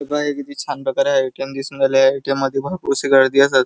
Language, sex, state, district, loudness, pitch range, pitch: Marathi, male, Maharashtra, Chandrapur, -18 LUFS, 135-145 Hz, 140 Hz